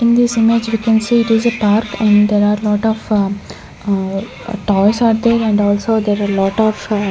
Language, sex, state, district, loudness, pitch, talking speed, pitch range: English, female, Chandigarh, Chandigarh, -14 LUFS, 215 Hz, 220 wpm, 205-225 Hz